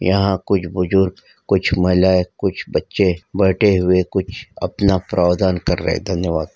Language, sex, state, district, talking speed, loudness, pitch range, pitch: Hindi, female, Maharashtra, Nagpur, 145 wpm, -18 LUFS, 90-95 Hz, 95 Hz